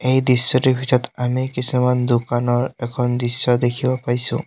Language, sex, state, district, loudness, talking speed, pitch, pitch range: Assamese, male, Assam, Sonitpur, -18 LUFS, 135 wpm, 125 Hz, 120-130 Hz